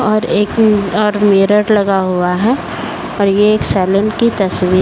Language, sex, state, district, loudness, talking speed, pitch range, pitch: Hindi, female, Uttar Pradesh, Varanasi, -13 LUFS, 175 wpm, 195-215 Hz, 205 Hz